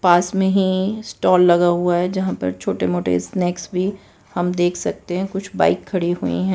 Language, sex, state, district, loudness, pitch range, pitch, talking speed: Hindi, female, Gujarat, Valsad, -19 LUFS, 175-190 Hz, 180 Hz, 200 wpm